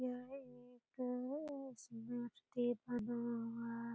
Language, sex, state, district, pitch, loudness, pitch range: Hindi, female, Bihar, Purnia, 245 Hz, -44 LUFS, 235-250 Hz